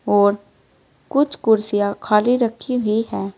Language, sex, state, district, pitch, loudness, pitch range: Hindi, female, Uttar Pradesh, Saharanpur, 220 Hz, -19 LUFS, 205-245 Hz